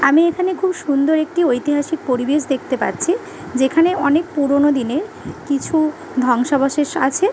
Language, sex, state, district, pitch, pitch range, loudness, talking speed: Bengali, female, West Bengal, Malda, 295 Hz, 275-340 Hz, -18 LUFS, 130 wpm